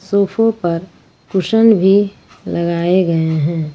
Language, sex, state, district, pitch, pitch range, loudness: Hindi, female, Jharkhand, Ranchi, 185 Hz, 165-200 Hz, -15 LUFS